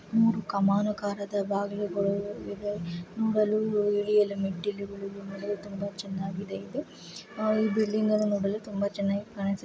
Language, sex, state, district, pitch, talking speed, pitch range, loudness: Kannada, female, Karnataka, Raichur, 200 Hz, 120 wpm, 200-210 Hz, -29 LUFS